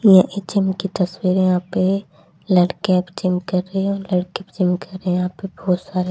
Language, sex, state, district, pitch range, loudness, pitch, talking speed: Hindi, female, Haryana, Jhajjar, 180-195 Hz, -20 LUFS, 185 Hz, 235 wpm